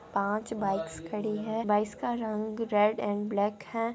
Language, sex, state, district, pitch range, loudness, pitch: Hindi, female, Andhra Pradesh, Anantapur, 205-220 Hz, -30 LUFS, 210 Hz